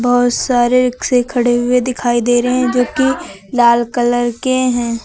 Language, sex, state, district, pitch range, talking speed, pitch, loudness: Hindi, female, Uttar Pradesh, Lucknow, 240-250 Hz, 180 wpm, 245 Hz, -14 LUFS